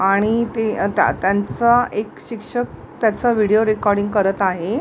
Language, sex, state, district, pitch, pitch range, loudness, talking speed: Marathi, female, Maharashtra, Mumbai Suburban, 215 Hz, 205-235 Hz, -18 LUFS, 150 wpm